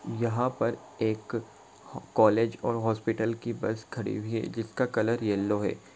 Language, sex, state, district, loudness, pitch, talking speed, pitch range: Hindi, male, Bihar, Saran, -29 LUFS, 115 Hz, 160 wpm, 110-115 Hz